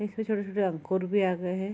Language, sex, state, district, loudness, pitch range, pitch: Hindi, female, Bihar, Araria, -29 LUFS, 185-210 Hz, 195 Hz